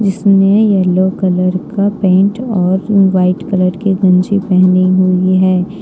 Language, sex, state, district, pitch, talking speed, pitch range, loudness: Hindi, female, Jharkhand, Ranchi, 190 Hz, 135 wpm, 185-200 Hz, -12 LUFS